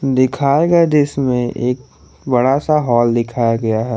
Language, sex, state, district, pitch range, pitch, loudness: Hindi, male, Jharkhand, Garhwa, 120-140 Hz, 130 Hz, -15 LUFS